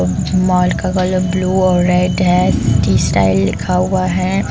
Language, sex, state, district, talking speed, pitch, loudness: Hindi, female, Jharkhand, Deoghar, 160 wpm, 180 Hz, -14 LUFS